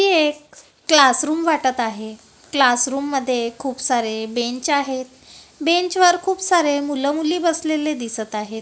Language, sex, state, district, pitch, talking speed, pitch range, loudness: Marathi, female, Maharashtra, Gondia, 280 Hz, 130 wpm, 245-315 Hz, -19 LUFS